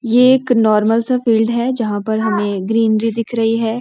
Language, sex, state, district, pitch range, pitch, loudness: Hindi, female, Uttarakhand, Uttarkashi, 220-235 Hz, 225 Hz, -15 LUFS